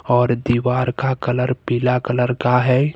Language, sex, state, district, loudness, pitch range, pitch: Hindi, male, Jharkhand, Deoghar, -18 LUFS, 120-130 Hz, 125 Hz